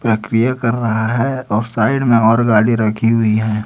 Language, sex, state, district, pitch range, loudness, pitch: Hindi, male, Chhattisgarh, Raipur, 110-120 Hz, -15 LUFS, 115 Hz